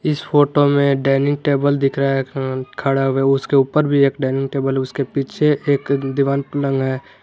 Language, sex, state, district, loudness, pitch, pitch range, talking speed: Hindi, male, Jharkhand, Garhwa, -18 LUFS, 140 Hz, 135-145 Hz, 190 wpm